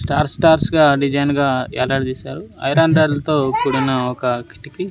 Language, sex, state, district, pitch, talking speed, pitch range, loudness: Telugu, male, Andhra Pradesh, Sri Satya Sai, 140 Hz, 160 wpm, 130-155 Hz, -17 LUFS